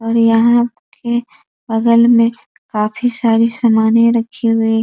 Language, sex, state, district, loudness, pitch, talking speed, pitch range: Hindi, female, Bihar, East Champaran, -14 LUFS, 230 Hz, 135 wpm, 225-235 Hz